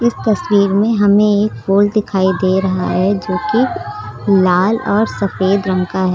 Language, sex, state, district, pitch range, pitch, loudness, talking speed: Hindi, female, Uttar Pradesh, Lucknow, 190-215 Hz, 200 Hz, -14 LUFS, 165 wpm